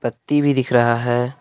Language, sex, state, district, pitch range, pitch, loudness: Hindi, male, Jharkhand, Palamu, 120-140 Hz, 125 Hz, -18 LUFS